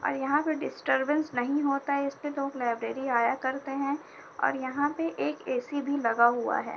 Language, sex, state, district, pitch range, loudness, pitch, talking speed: Hindi, female, Uttar Pradesh, Etah, 260-290 Hz, -29 LUFS, 275 Hz, 195 wpm